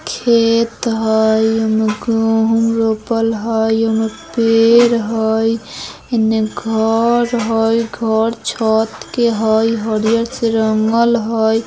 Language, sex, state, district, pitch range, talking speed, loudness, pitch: Bajjika, female, Bihar, Vaishali, 220-230 Hz, 110 wpm, -15 LUFS, 225 Hz